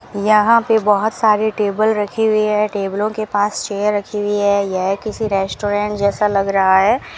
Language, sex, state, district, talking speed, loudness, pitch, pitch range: Hindi, female, Rajasthan, Bikaner, 185 wpm, -16 LUFS, 205 Hz, 200-215 Hz